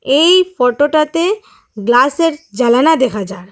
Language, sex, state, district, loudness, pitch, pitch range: Bengali, female, Assam, Hailakandi, -13 LUFS, 290 Hz, 245-330 Hz